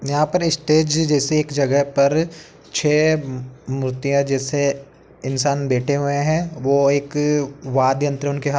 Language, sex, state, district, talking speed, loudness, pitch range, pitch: Hindi, male, Uttar Pradesh, Etah, 145 wpm, -19 LUFS, 140-150 Hz, 140 Hz